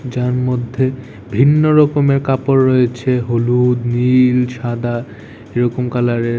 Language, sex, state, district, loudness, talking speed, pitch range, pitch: Bengali, male, Tripura, West Tripura, -15 LUFS, 115 wpm, 120-130 Hz, 125 Hz